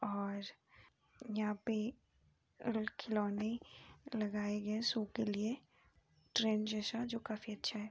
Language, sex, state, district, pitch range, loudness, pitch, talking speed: Hindi, female, Uttar Pradesh, Ghazipur, 210-230 Hz, -40 LUFS, 215 Hz, 120 wpm